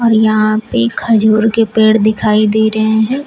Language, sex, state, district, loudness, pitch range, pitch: Hindi, female, Uttar Pradesh, Shamli, -12 LUFS, 215-220 Hz, 220 Hz